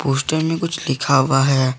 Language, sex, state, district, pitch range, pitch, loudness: Hindi, male, Jharkhand, Garhwa, 135-160 Hz, 135 Hz, -18 LUFS